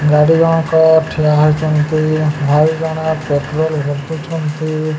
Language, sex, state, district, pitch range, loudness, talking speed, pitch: Odia, male, Odisha, Sambalpur, 150-160 Hz, -14 LUFS, 95 wpm, 155 Hz